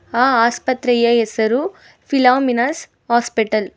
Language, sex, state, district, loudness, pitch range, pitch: Kannada, female, Karnataka, Bangalore, -16 LUFS, 230-260 Hz, 240 Hz